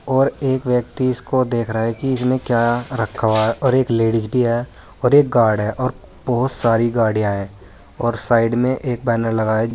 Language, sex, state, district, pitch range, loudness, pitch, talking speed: Hindi, male, Uttar Pradesh, Saharanpur, 115-130 Hz, -18 LUFS, 120 Hz, 210 wpm